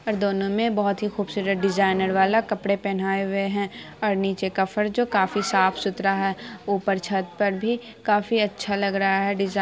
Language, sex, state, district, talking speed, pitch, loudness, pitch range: Hindi, female, Bihar, Araria, 180 wpm, 200 Hz, -24 LUFS, 195-210 Hz